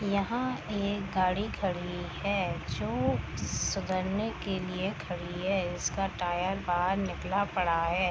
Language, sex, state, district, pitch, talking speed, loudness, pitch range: Hindi, female, Bihar, East Champaran, 190 Hz, 125 wpm, -31 LUFS, 180-200 Hz